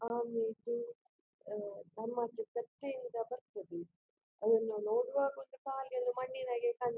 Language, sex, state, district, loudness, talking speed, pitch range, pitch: Kannada, female, Karnataka, Dakshina Kannada, -38 LUFS, 70 wpm, 225-270 Hz, 245 Hz